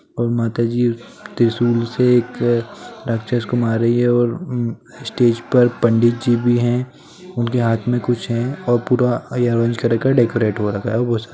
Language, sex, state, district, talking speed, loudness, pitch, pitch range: Hindi, male, Jharkhand, Sahebganj, 165 wpm, -18 LUFS, 120 Hz, 115-120 Hz